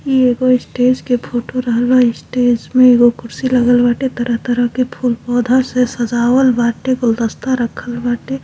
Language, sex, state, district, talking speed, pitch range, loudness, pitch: Bhojpuri, female, Uttar Pradesh, Gorakhpur, 170 wpm, 240-255 Hz, -15 LUFS, 245 Hz